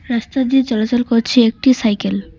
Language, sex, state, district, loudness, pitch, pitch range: Bengali, female, West Bengal, Cooch Behar, -15 LUFS, 235 Hz, 220-255 Hz